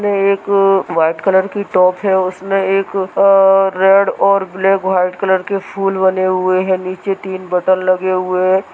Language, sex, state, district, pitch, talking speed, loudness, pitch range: Hindi, male, Chhattisgarh, Sarguja, 190 Hz, 180 wpm, -14 LUFS, 185-195 Hz